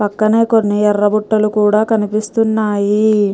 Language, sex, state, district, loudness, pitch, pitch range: Telugu, female, Telangana, Nalgonda, -14 LUFS, 215 Hz, 210-220 Hz